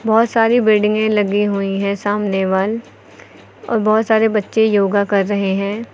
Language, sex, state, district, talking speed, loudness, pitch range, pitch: Hindi, female, Uttar Pradesh, Lucknow, 160 wpm, -16 LUFS, 195-220 Hz, 205 Hz